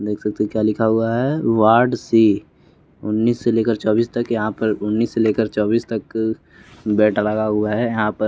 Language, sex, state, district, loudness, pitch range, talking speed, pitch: Hindi, male, Bihar, West Champaran, -19 LUFS, 105-115 Hz, 205 wpm, 110 Hz